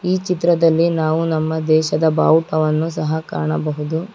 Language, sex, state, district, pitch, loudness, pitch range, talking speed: Kannada, female, Karnataka, Bangalore, 160 Hz, -17 LUFS, 155-165 Hz, 115 wpm